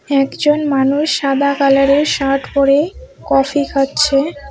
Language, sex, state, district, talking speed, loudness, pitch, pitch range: Bengali, female, West Bengal, Alipurduar, 105 wpm, -14 LUFS, 275 Hz, 275-290 Hz